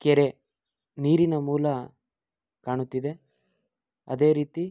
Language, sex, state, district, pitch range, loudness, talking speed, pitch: Kannada, male, Karnataka, Mysore, 140-165 Hz, -26 LUFS, 75 wpm, 150 Hz